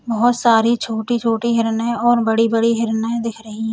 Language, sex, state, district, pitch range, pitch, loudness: Hindi, female, Uttar Pradesh, Lalitpur, 225-235 Hz, 230 Hz, -17 LUFS